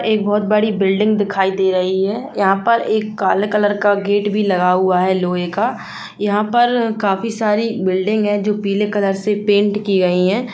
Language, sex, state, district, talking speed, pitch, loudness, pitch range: Hindi, female, Bihar, Gopalganj, 200 wpm, 205 Hz, -16 LUFS, 195-210 Hz